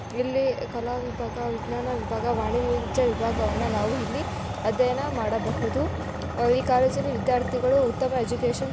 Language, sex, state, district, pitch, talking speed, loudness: Kannada, female, Karnataka, Dakshina Kannada, 250 Hz, 115 wpm, -26 LUFS